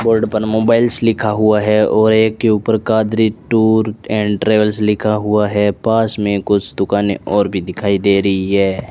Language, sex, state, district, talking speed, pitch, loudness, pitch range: Hindi, male, Rajasthan, Bikaner, 180 wpm, 105 Hz, -15 LUFS, 100-110 Hz